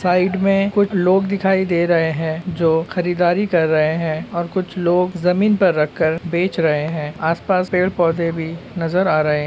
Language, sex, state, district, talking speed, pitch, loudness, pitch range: Hindi, male, West Bengal, Purulia, 195 wpm, 175 Hz, -18 LUFS, 160-185 Hz